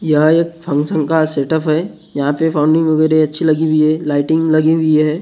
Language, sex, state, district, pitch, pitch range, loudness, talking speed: Hindi, male, Maharashtra, Gondia, 155 Hz, 155-160 Hz, -14 LUFS, 220 wpm